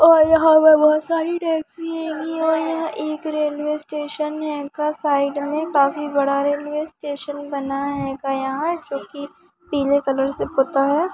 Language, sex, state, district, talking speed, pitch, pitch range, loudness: Hindi, female, Bihar, Purnia, 155 wpm, 300 Hz, 280-320 Hz, -20 LUFS